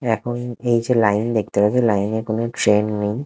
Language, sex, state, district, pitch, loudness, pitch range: Bengali, male, Odisha, Khordha, 115 Hz, -19 LUFS, 105-120 Hz